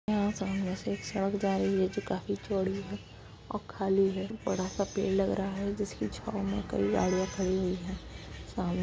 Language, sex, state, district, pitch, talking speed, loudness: Hindi, female, Uttar Pradesh, Etah, 190 Hz, 210 wpm, -32 LUFS